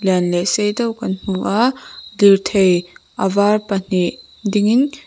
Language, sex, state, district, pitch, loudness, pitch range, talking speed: Mizo, female, Mizoram, Aizawl, 200 Hz, -17 LUFS, 190-215 Hz, 140 wpm